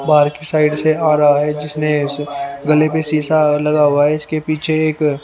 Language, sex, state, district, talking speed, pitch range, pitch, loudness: Hindi, male, Haryana, Rohtak, 205 wpm, 145-155 Hz, 150 Hz, -15 LUFS